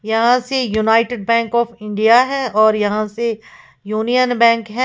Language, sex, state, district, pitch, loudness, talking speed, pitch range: Hindi, female, Uttar Pradesh, Lalitpur, 230 Hz, -16 LUFS, 160 wpm, 215-240 Hz